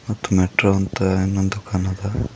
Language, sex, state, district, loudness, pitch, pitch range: Kannada, male, Karnataka, Bidar, -20 LUFS, 95 Hz, 95-105 Hz